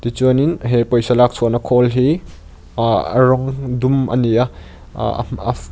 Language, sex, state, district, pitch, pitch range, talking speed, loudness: Mizo, male, Mizoram, Aizawl, 125 Hz, 120-130 Hz, 170 wpm, -16 LUFS